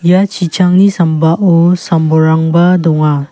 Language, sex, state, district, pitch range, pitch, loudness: Garo, female, Meghalaya, West Garo Hills, 160-180 Hz, 170 Hz, -10 LUFS